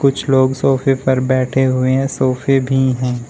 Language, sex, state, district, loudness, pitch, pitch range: Hindi, male, Uttar Pradesh, Shamli, -15 LUFS, 130 Hz, 130-135 Hz